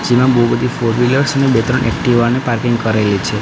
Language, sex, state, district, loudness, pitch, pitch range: Gujarati, male, Gujarat, Gandhinagar, -14 LUFS, 120 Hz, 115-125 Hz